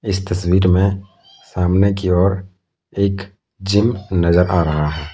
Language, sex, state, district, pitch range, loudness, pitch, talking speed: Hindi, male, Jharkhand, Deoghar, 90-100 Hz, -17 LUFS, 95 Hz, 130 wpm